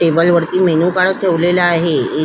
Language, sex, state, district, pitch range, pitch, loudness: Marathi, female, Maharashtra, Solapur, 165-180 Hz, 175 Hz, -13 LUFS